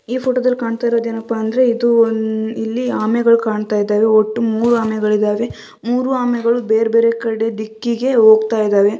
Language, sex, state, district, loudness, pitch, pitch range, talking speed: Kannada, female, Karnataka, Gulbarga, -16 LUFS, 230 Hz, 220-235 Hz, 165 wpm